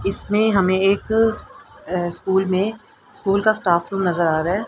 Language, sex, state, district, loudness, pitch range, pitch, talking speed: Hindi, female, Haryana, Rohtak, -18 LUFS, 180-210 Hz, 195 Hz, 180 wpm